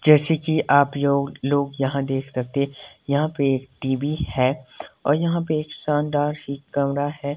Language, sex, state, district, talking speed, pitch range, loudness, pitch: Hindi, male, Himachal Pradesh, Shimla, 180 wpm, 140-150 Hz, -22 LUFS, 140 Hz